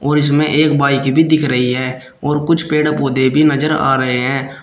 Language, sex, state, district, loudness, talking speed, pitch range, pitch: Hindi, male, Uttar Pradesh, Shamli, -14 LUFS, 220 wpm, 130-150 Hz, 145 Hz